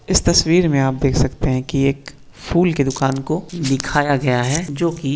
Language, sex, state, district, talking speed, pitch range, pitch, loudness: Hindi, male, Uttar Pradesh, Hamirpur, 220 wpm, 135-160 Hz, 140 Hz, -18 LUFS